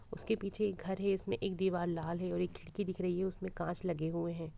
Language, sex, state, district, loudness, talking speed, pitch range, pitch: Hindi, female, Bihar, Gopalganj, -37 LUFS, 260 wpm, 170-195 Hz, 180 Hz